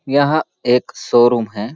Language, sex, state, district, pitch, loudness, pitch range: Hindi, male, Chhattisgarh, Balrampur, 120 Hz, -16 LUFS, 120-140 Hz